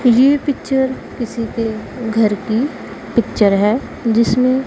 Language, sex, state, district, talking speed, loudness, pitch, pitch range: Hindi, female, Punjab, Pathankot, 115 wpm, -17 LUFS, 235 Hz, 225-260 Hz